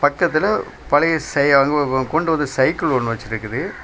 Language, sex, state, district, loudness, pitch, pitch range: Tamil, male, Tamil Nadu, Kanyakumari, -18 LUFS, 145 Hz, 130-155 Hz